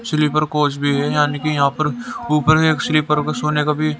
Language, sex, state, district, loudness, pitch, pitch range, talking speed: Hindi, male, Haryana, Rohtak, -18 LUFS, 150 Hz, 145-155 Hz, 225 wpm